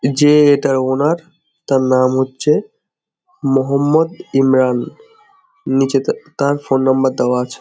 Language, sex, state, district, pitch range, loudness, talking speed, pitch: Bengali, male, West Bengal, Jhargram, 130-155 Hz, -15 LUFS, 110 wpm, 135 Hz